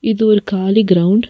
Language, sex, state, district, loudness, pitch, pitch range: Tamil, female, Tamil Nadu, Nilgiris, -13 LUFS, 210 Hz, 195-220 Hz